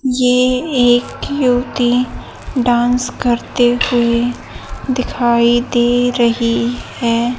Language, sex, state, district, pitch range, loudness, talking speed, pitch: Hindi, female, Haryana, Jhajjar, 240-250 Hz, -15 LUFS, 80 wpm, 245 Hz